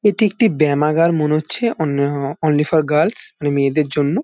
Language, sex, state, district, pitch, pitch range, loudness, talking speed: Bengali, male, West Bengal, Jalpaiguri, 155 Hz, 145-170 Hz, -17 LUFS, 170 wpm